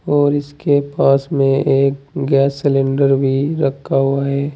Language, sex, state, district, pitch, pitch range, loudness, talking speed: Hindi, male, Uttar Pradesh, Saharanpur, 140 Hz, 135-145 Hz, -16 LUFS, 145 wpm